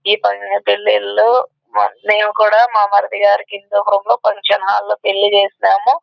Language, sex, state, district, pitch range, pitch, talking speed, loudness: Telugu, female, Andhra Pradesh, Anantapur, 200-215 Hz, 205 Hz, 150 wpm, -14 LUFS